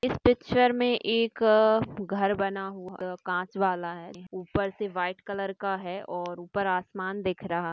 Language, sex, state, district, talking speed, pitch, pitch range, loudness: Hindi, female, Maharashtra, Nagpur, 180 wpm, 195 Hz, 180-205 Hz, -28 LUFS